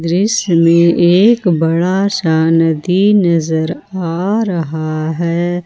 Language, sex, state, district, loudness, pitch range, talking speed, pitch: Hindi, female, Jharkhand, Ranchi, -13 LUFS, 165-190 Hz, 105 wpm, 170 Hz